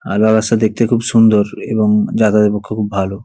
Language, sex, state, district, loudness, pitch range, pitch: Bengali, male, West Bengal, Paschim Medinipur, -14 LUFS, 105-110 Hz, 110 Hz